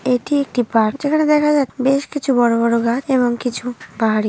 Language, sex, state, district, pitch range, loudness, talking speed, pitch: Bengali, female, West Bengal, North 24 Parganas, 235-280 Hz, -17 LUFS, 210 wpm, 250 Hz